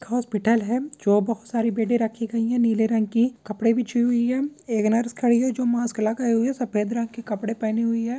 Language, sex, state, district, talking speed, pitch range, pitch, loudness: Hindi, male, Bihar, Purnia, 250 wpm, 225-240 Hz, 230 Hz, -23 LUFS